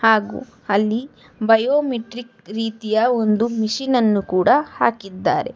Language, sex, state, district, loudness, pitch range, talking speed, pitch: Kannada, female, Karnataka, Bangalore, -19 LUFS, 215-245 Hz, 95 wpm, 225 Hz